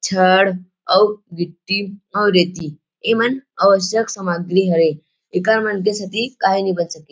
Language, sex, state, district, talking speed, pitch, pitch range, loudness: Chhattisgarhi, male, Chhattisgarh, Rajnandgaon, 160 wpm, 190 Hz, 175-210 Hz, -17 LUFS